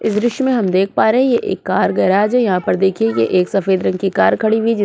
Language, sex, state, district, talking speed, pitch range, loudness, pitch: Hindi, female, Uttar Pradesh, Jyotiba Phule Nagar, 310 wpm, 190-230 Hz, -15 LUFS, 205 Hz